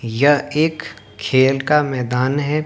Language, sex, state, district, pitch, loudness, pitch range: Hindi, male, Haryana, Jhajjar, 135 Hz, -17 LUFS, 125-150 Hz